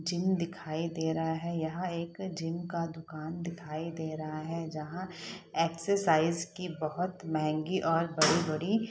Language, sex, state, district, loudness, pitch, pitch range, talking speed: Hindi, female, Bihar, Saharsa, -33 LUFS, 165 Hz, 160-175 Hz, 155 wpm